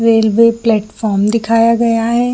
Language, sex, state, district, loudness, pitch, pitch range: Hindi, female, Jharkhand, Jamtara, -13 LUFS, 230 Hz, 220-230 Hz